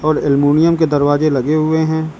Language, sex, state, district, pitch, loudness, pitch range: Hindi, female, Uttar Pradesh, Lucknow, 155 Hz, -14 LUFS, 145-160 Hz